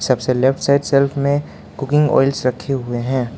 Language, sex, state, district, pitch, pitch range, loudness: Hindi, male, Arunachal Pradesh, Lower Dibang Valley, 135 Hz, 130-140 Hz, -17 LUFS